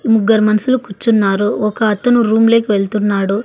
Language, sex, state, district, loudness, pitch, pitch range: Telugu, female, Andhra Pradesh, Annamaya, -14 LUFS, 215 Hz, 205-230 Hz